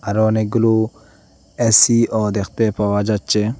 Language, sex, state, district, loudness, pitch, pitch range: Bengali, male, Assam, Hailakandi, -16 LUFS, 110 Hz, 105-115 Hz